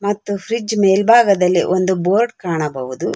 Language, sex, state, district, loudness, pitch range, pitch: Kannada, female, Karnataka, Bangalore, -16 LUFS, 180-210 Hz, 195 Hz